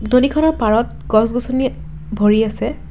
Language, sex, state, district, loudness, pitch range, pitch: Assamese, female, Assam, Kamrup Metropolitan, -17 LUFS, 215-255 Hz, 225 Hz